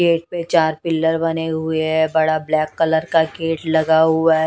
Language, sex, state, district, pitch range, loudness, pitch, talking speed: Hindi, female, Odisha, Nuapada, 160-165 Hz, -18 LUFS, 160 Hz, 200 wpm